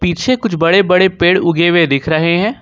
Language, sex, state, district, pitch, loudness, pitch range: Hindi, male, Jharkhand, Ranchi, 175 Hz, -12 LUFS, 170-190 Hz